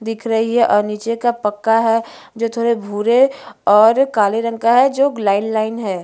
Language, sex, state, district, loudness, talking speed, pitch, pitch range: Hindi, female, Chhattisgarh, Bastar, -16 LUFS, 200 wpm, 225 Hz, 215-235 Hz